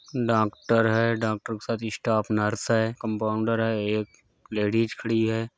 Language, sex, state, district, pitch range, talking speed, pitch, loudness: Hindi, male, Bihar, Gopalganj, 110-115 Hz, 150 wpm, 110 Hz, -25 LUFS